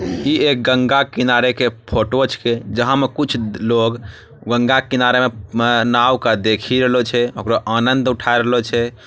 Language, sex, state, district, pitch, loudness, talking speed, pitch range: Angika, male, Bihar, Bhagalpur, 120 Hz, -16 LUFS, 165 wpm, 115-125 Hz